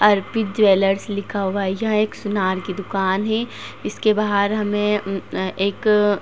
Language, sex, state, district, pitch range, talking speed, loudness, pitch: Hindi, female, Uttar Pradesh, Jalaun, 195-210 Hz, 175 wpm, -20 LUFS, 205 Hz